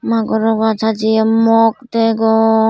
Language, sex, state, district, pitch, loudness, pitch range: Chakma, female, Tripura, Dhalai, 225 Hz, -14 LUFS, 220-225 Hz